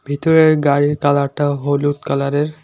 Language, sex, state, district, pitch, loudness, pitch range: Bengali, male, West Bengal, Alipurduar, 145 Hz, -16 LUFS, 140-150 Hz